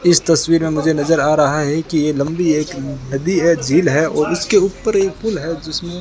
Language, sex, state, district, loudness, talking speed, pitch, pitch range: Hindi, male, Rajasthan, Bikaner, -16 LUFS, 240 wpm, 160 Hz, 150-175 Hz